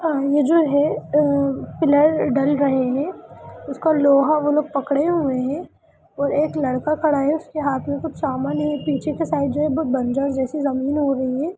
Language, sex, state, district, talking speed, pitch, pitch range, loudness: Hindi, male, Bihar, Darbhanga, 185 wpm, 285 Hz, 275-305 Hz, -20 LUFS